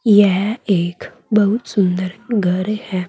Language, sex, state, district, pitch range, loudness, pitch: Hindi, female, Uttar Pradesh, Saharanpur, 185-215 Hz, -17 LUFS, 200 Hz